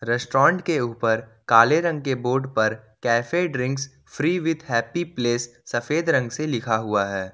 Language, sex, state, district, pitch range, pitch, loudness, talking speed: Hindi, male, Jharkhand, Ranchi, 115-155 Hz, 125 Hz, -22 LUFS, 165 wpm